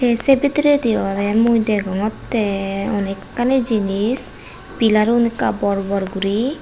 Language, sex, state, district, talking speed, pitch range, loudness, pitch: Chakma, female, Tripura, West Tripura, 125 wpm, 200-240 Hz, -18 LUFS, 220 Hz